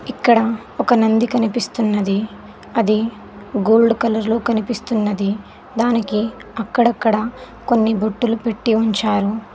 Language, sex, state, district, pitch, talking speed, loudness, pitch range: Telugu, female, Telangana, Mahabubabad, 225 Hz, 95 wpm, -18 LUFS, 215-235 Hz